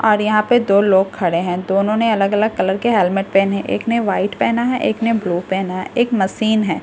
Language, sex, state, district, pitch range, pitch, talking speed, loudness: Hindi, female, Delhi, New Delhi, 190-225 Hz, 205 Hz, 245 wpm, -17 LUFS